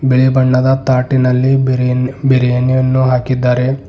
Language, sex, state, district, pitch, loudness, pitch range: Kannada, male, Karnataka, Bidar, 130 Hz, -13 LUFS, 125-130 Hz